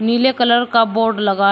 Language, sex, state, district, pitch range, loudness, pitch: Hindi, male, Uttar Pradesh, Shamli, 220-240 Hz, -15 LUFS, 230 Hz